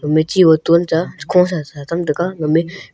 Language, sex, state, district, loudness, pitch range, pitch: Wancho, male, Arunachal Pradesh, Longding, -16 LUFS, 155-175 Hz, 165 Hz